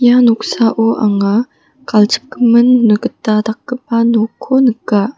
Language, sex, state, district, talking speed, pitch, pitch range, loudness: Garo, female, Meghalaya, West Garo Hills, 95 wpm, 230 Hz, 220-250 Hz, -13 LUFS